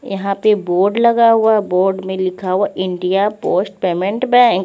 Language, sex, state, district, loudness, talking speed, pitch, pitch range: Hindi, female, Chandigarh, Chandigarh, -15 LUFS, 180 wpm, 195 Hz, 185-215 Hz